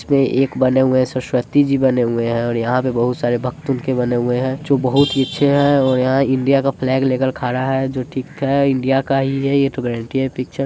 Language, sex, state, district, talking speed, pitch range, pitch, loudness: Hindi, male, Bihar, Sitamarhi, 260 wpm, 125-135 Hz, 130 Hz, -17 LUFS